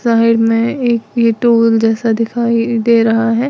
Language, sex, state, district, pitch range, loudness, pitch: Hindi, female, Uttar Pradesh, Lalitpur, 225-235 Hz, -13 LUFS, 230 Hz